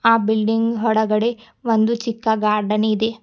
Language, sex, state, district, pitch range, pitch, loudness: Kannada, female, Karnataka, Bidar, 220-230 Hz, 220 Hz, -19 LUFS